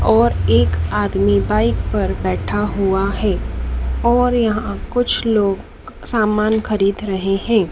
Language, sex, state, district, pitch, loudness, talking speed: Hindi, female, Madhya Pradesh, Dhar, 190 Hz, -18 LUFS, 125 wpm